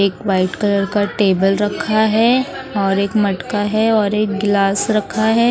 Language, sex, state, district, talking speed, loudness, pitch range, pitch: Hindi, female, Haryana, Rohtak, 175 wpm, -16 LUFS, 200-220 Hz, 205 Hz